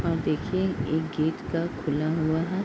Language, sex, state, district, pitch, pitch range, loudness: Hindi, female, Uttar Pradesh, Deoria, 160 Hz, 155-170 Hz, -27 LUFS